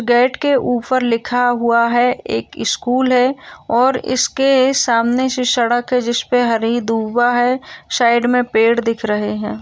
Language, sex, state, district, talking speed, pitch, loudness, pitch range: Hindi, female, Bihar, Gaya, 155 wpm, 245 Hz, -16 LUFS, 235-255 Hz